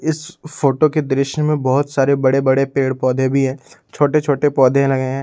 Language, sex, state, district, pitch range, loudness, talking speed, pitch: Hindi, male, Jharkhand, Ranchi, 135-150 Hz, -16 LUFS, 205 wpm, 140 Hz